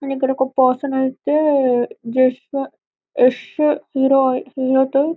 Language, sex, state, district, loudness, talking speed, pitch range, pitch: Telugu, female, Telangana, Karimnagar, -18 LUFS, 115 wpm, 255-275 Hz, 265 Hz